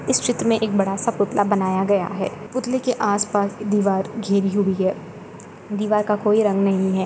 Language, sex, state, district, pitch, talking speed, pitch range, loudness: Hindi, female, Goa, North and South Goa, 205 Hz, 195 wpm, 195-210 Hz, -21 LUFS